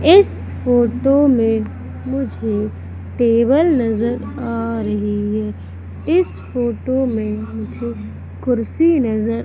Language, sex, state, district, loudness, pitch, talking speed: Hindi, female, Madhya Pradesh, Umaria, -18 LUFS, 120 Hz, 95 wpm